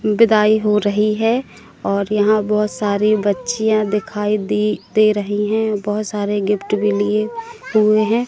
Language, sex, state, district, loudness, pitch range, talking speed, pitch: Hindi, female, Madhya Pradesh, Katni, -17 LUFS, 210-215 Hz, 150 wpm, 210 Hz